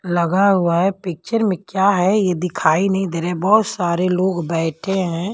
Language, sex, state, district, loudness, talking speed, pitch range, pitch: Hindi, female, Punjab, Pathankot, -18 LUFS, 190 wpm, 175-195 Hz, 185 Hz